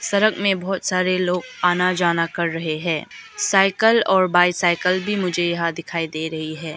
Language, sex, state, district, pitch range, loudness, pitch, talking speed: Hindi, female, Arunachal Pradesh, Lower Dibang Valley, 170-195 Hz, -20 LUFS, 180 Hz, 185 wpm